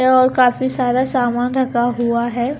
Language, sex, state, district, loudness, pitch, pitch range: Hindi, female, Punjab, Kapurthala, -17 LUFS, 250 Hz, 240-260 Hz